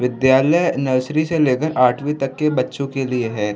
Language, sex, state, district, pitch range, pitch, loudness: Hindi, male, Bihar, Samastipur, 125-150 Hz, 135 Hz, -18 LUFS